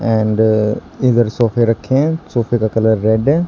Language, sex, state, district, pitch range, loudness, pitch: Hindi, male, Haryana, Charkhi Dadri, 110-125 Hz, -15 LUFS, 115 Hz